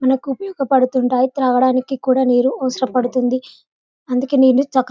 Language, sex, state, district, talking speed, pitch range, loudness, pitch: Telugu, female, Telangana, Karimnagar, 135 wpm, 255-265 Hz, -17 LUFS, 255 Hz